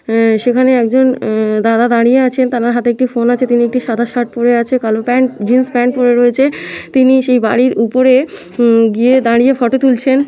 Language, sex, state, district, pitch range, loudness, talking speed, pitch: Bengali, female, West Bengal, Kolkata, 235-255 Hz, -12 LUFS, 185 wpm, 245 Hz